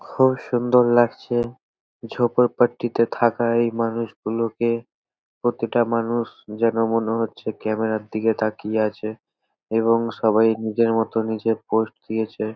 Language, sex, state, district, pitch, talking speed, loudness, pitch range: Bengali, male, West Bengal, North 24 Parganas, 115 Hz, 120 wpm, -22 LUFS, 110-120 Hz